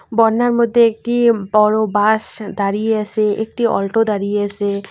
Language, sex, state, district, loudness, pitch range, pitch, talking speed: Bengali, female, West Bengal, Cooch Behar, -16 LUFS, 205-230 Hz, 215 Hz, 135 wpm